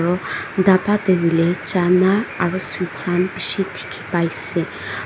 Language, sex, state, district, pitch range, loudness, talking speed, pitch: Nagamese, female, Nagaland, Dimapur, 175-190 Hz, -19 LUFS, 105 wpm, 180 Hz